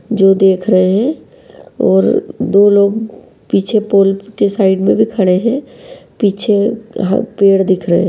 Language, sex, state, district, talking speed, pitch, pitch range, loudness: Hindi, female, Uttar Pradesh, Varanasi, 155 wpm, 200 Hz, 195-225 Hz, -13 LUFS